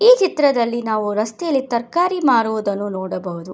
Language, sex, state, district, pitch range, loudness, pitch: Kannada, female, Karnataka, Bangalore, 205-300 Hz, -19 LUFS, 235 Hz